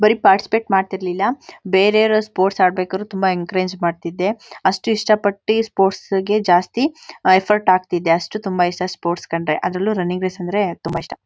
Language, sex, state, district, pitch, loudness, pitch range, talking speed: Kannada, female, Karnataka, Mysore, 190 Hz, -18 LUFS, 180-210 Hz, 150 wpm